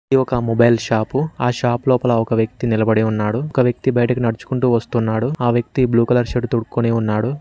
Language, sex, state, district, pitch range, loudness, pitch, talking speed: Telugu, male, Telangana, Mahabubabad, 115-125 Hz, -18 LUFS, 120 Hz, 185 wpm